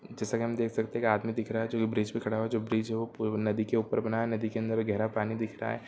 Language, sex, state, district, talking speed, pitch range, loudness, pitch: Hindi, male, Jharkhand, Jamtara, 335 wpm, 110-115 Hz, -31 LUFS, 110 Hz